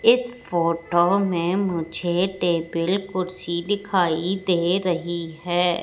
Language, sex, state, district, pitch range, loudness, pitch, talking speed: Hindi, female, Madhya Pradesh, Katni, 170-190 Hz, -23 LUFS, 175 Hz, 105 wpm